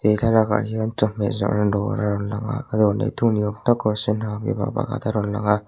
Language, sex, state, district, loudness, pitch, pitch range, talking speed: Mizo, male, Mizoram, Aizawl, -22 LUFS, 105 Hz, 105-115 Hz, 275 wpm